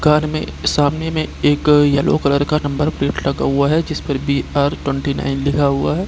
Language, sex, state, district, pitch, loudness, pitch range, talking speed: Hindi, male, Bihar, Gopalganj, 145 Hz, -17 LUFS, 140-150 Hz, 195 wpm